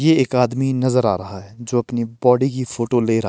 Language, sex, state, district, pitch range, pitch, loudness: Hindi, male, Himachal Pradesh, Shimla, 115-130 Hz, 120 Hz, -19 LUFS